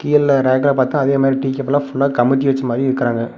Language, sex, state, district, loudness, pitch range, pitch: Tamil, male, Tamil Nadu, Namakkal, -16 LUFS, 130-140 Hz, 135 Hz